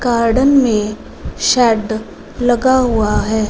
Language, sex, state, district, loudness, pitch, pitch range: Hindi, female, Punjab, Fazilka, -14 LUFS, 235 Hz, 220-250 Hz